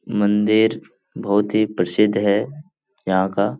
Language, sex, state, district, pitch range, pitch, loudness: Hindi, male, Bihar, Lakhisarai, 100-110 Hz, 105 Hz, -19 LUFS